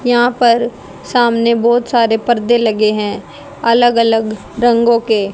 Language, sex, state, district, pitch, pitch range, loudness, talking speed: Hindi, female, Haryana, Rohtak, 235 Hz, 225-240 Hz, -13 LUFS, 135 wpm